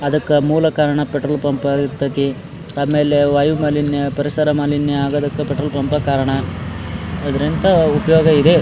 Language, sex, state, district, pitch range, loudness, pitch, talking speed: Kannada, male, Karnataka, Dharwad, 140-150 Hz, -17 LUFS, 145 Hz, 130 wpm